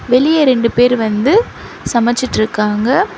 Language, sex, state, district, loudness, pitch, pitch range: Tamil, female, Tamil Nadu, Chennai, -13 LUFS, 245 Hz, 225-270 Hz